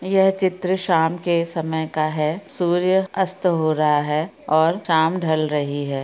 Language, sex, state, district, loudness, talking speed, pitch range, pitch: Hindi, female, Chhattisgarh, Raigarh, -20 LUFS, 170 wpm, 155-185 Hz, 165 Hz